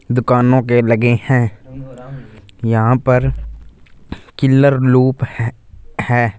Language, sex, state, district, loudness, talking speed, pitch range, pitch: Hindi, male, Punjab, Fazilka, -14 LUFS, 95 wpm, 110-130 Hz, 120 Hz